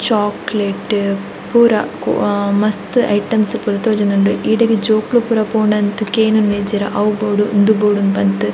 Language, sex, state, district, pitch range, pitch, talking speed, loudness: Tulu, female, Karnataka, Dakshina Kannada, 205-220 Hz, 210 Hz, 135 wpm, -15 LUFS